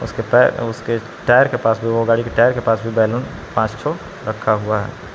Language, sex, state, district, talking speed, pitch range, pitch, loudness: Hindi, male, Jharkhand, Palamu, 235 wpm, 110-120 Hz, 115 Hz, -18 LUFS